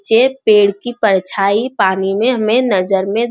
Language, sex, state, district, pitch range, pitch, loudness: Hindi, male, Bihar, Jamui, 195-245 Hz, 215 Hz, -14 LUFS